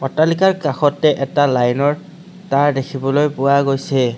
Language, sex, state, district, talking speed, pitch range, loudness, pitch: Assamese, male, Assam, Kamrup Metropolitan, 130 wpm, 135-155 Hz, -16 LUFS, 145 Hz